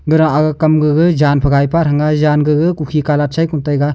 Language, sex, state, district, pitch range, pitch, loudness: Wancho, male, Arunachal Pradesh, Longding, 145-155 Hz, 150 Hz, -13 LUFS